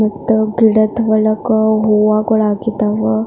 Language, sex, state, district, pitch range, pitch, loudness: Kannada, female, Karnataka, Belgaum, 215-220 Hz, 215 Hz, -14 LUFS